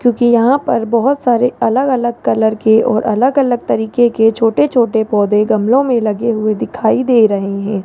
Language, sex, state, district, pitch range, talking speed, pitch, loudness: Hindi, male, Rajasthan, Jaipur, 220-245 Hz, 190 wpm, 230 Hz, -13 LUFS